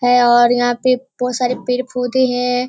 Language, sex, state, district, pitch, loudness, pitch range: Hindi, female, Bihar, Kishanganj, 250 Hz, -16 LUFS, 245-255 Hz